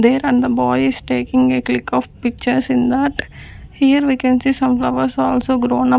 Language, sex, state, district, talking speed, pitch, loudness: English, female, Chandigarh, Chandigarh, 210 wpm, 245 Hz, -16 LUFS